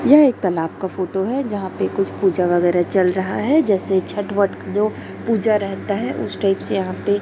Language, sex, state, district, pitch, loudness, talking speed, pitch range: Hindi, female, Chhattisgarh, Raipur, 195 Hz, -19 LUFS, 225 wpm, 190-210 Hz